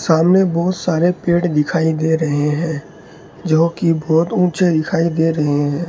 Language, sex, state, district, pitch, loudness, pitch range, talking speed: Hindi, male, Rajasthan, Bikaner, 165 Hz, -16 LUFS, 160-175 Hz, 155 wpm